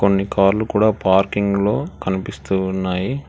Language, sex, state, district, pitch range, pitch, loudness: Telugu, male, Telangana, Hyderabad, 95-100 Hz, 100 Hz, -19 LUFS